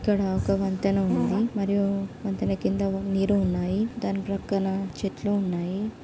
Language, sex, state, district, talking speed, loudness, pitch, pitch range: Telugu, female, Telangana, Nalgonda, 130 wpm, -26 LUFS, 195 Hz, 195-205 Hz